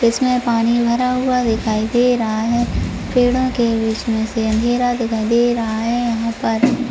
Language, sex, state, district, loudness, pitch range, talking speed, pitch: Hindi, female, Jharkhand, Jamtara, -17 LUFS, 225-245 Hz, 180 wpm, 235 Hz